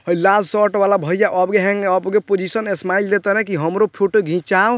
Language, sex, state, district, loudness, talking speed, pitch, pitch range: Bhojpuri, male, Bihar, Muzaffarpur, -17 LUFS, 215 wpm, 195 Hz, 185-210 Hz